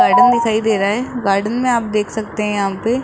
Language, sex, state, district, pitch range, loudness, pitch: Hindi, female, Rajasthan, Jaipur, 205-245 Hz, -16 LUFS, 220 Hz